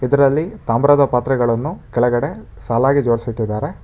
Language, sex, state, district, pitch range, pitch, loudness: Kannada, male, Karnataka, Bangalore, 115-140 Hz, 125 Hz, -17 LUFS